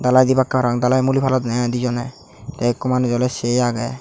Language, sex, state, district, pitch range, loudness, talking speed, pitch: Chakma, male, Tripura, Unakoti, 120-130 Hz, -18 LUFS, 210 wpm, 125 Hz